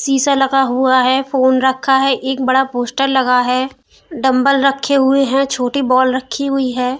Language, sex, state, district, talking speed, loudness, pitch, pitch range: Hindi, female, Uttar Pradesh, Hamirpur, 180 wpm, -14 LUFS, 265 Hz, 255-275 Hz